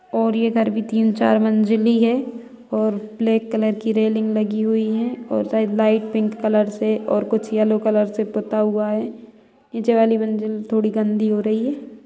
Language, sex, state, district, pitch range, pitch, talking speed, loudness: Hindi, female, Bihar, Saran, 215-225 Hz, 220 Hz, 185 wpm, -20 LUFS